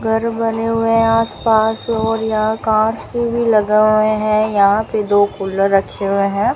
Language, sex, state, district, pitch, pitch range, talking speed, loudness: Hindi, female, Rajasthan, Bikaner, 220 Hz, 210-225 Hz, 190 wpm, -16 LUFS